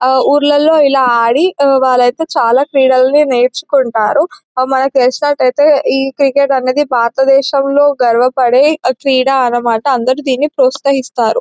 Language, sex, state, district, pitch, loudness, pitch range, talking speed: Telugu, male, Telangana, Nalgonda, 265 Hz, -11 LUFS, 255-285 Hz, 100 wpm